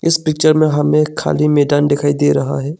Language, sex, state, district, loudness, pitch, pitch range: Hindi, male, Arunachal Pradesh, Longding, -14 LUFS, 150 Hz, 145-155 Hz